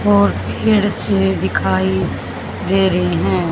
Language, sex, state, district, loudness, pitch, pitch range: Hindi, female, Haryana, Jhajjar, -17 LUFS, 95 Hz, 95-120 Hz